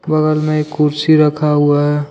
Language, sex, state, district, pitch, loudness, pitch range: Hindi, male, Jharkhand, Deoghar, 150 Hz, -14 LUFS, 145-155 Hz